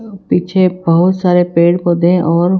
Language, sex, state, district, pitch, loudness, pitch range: Hindi, female, Himachal Pradesh, Shimla, 180 Hz, -12 LUFS, 170-185 Hz